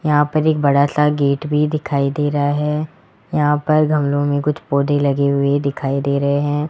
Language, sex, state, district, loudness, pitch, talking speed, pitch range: Hindi, male, Rajasthan, Jaipur, -17 LUFS, 145 Hz, 205 wpm, 140-150 Hz